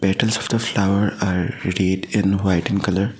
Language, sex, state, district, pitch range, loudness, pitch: English, male, Assam, Sonitpur, 95-105 Hz, -20 LUFS, 100 Hz